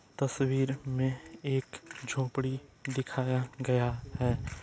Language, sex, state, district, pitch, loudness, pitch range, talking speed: Hindi, male, Bihar, East Champaran, 130 Hz, -33 LUFS, 125-135 Hz, 90 wpm